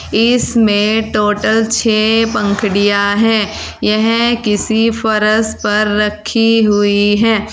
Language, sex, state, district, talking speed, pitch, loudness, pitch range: Hindi, female, Uttar Pradesh, Saharanpur, 95 wpm, 215 Hz, -13 LUFS, 210-225 Hz